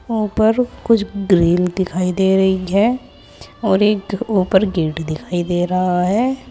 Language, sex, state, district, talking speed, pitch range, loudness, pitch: Hindi, female, Uttar Pradesh, Saharanpur, 140 wpm, 180-215 Hz, -17 LUFS, 190 Hz